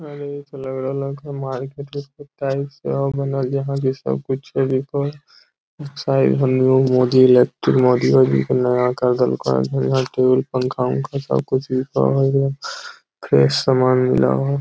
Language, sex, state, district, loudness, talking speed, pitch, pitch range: Magahi, male, Bihar, Lakhisarai, -18 LUFS, 135 wpm, 130 Hz, 125-140 Hz